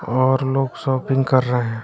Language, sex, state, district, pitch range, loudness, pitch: Hindi, male, Bihar, West Champaran, 125-135 Hz, -19 LUFS, 130 Hz